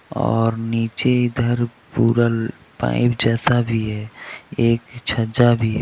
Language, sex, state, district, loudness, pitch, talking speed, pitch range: Hindi, male, Jharkhand, Deoghar, -20 LUFS, 115 Hz, 125 wpm, 115-120 Hz